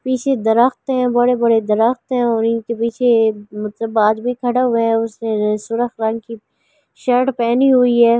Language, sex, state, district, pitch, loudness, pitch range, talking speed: Hindi, female, Delhi, New Delhi, 235 Hz, -16 LUFS, 225-245 Hz, 160 wpm